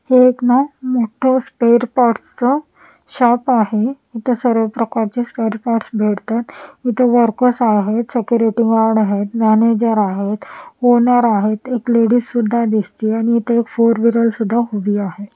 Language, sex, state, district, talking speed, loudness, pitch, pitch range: Marathi, female, Maharashtra, Washim, 140 wpm, -16 LUFS, 235 Hz, 220-245 Hz